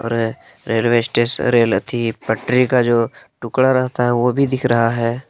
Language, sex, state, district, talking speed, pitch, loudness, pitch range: Hindi, male, Jharkhand, Palamu, 180 wpm, 120 Hz, -17 LUFS, 115-125 Hz